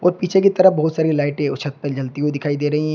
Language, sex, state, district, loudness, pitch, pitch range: Hindi, male, Uttar Pradesh, Shamli, -18 LUFS, 150 Hz, 145-175 Hz